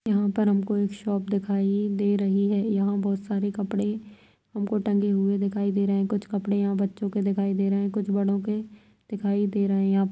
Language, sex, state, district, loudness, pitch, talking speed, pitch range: Kumaoni, female, Uttarakhand, Tehri Garhwal, -25 LUFS, 200 Hz, 220 wpm, 200-205 Hz